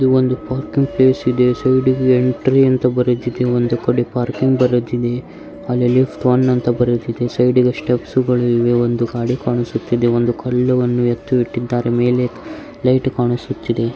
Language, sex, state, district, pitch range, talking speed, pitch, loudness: Kannada, male, Karnataka, Dharwad, 120-130 Hz, 100 wpm, 125 Hz, -16 LUFS